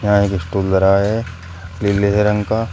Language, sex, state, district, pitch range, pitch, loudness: Hindi, male, Uttar Pradesh, Shamli, 95-105 Hz, 100 Hz, -16 LUFS